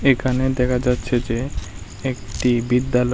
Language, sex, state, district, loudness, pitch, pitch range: Bengali, male, Tripura, West Tripura, -21 LUFS, 125 Hz, 115-125 Hz